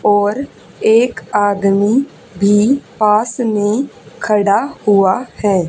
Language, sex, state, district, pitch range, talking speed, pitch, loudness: Hindi, female, Haryana, Charkhi Dadri, 200-235 Hz, 95 wpm, 210 Hz, -14 LUFS